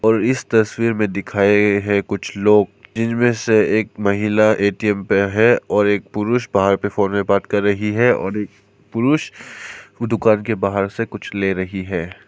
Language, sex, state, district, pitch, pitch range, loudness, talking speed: Hindi, male, Arunachal Pradesh, Papum Pare, 105 Hz, 100-110 Hz, -18 LUFS, 180 wpm